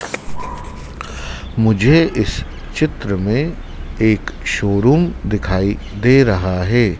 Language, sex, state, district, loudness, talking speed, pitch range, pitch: Hindi, male, Madhya Pradesh, Dhar, -16 LUFS, 85 wpm, 95-120 Hz, 105 Hz